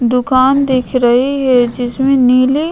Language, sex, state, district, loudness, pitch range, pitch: Hindi, female, Goa, North and South Goa, -12 LUFS, 245-270 Hz, 255 Hz